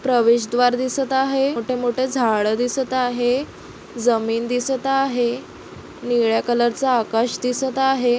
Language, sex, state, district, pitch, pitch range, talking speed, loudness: Marathi, female, Maharashtra, Solapur, 245 Hz, 235-265 Hz, 130 wpm, -20 LUFS